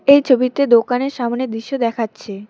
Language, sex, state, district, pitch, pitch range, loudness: Bengali, female, West Bengal, Cooch Behar, 245 Hz, 230-265 Hz, -17 LUFS